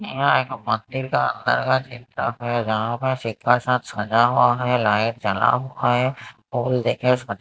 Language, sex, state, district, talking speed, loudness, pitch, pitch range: Hindi, male, Maharashtra, Mumbai Suburban, 180 wpm, -21 LUFS, 120 Hz, 115-125 Hz